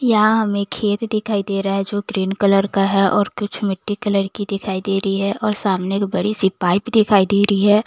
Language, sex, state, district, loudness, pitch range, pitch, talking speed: Hindi, female, Chandigarh, Chandigarh, -18 LUFS, 195-210 Hz, 200 Hz, 215 wpm